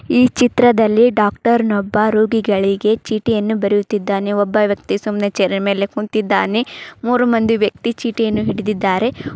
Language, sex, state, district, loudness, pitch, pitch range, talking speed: Kannada, male, Karnataka, Dharwad, -16 LUFS, 215 Hz, 205-230 Hz, 115 wpm